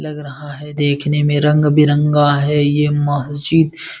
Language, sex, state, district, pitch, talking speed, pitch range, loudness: Hindi, male, Bihar, Supaul, 150 Hz, 135 wpm, 145-150 Hz, -15 LUFS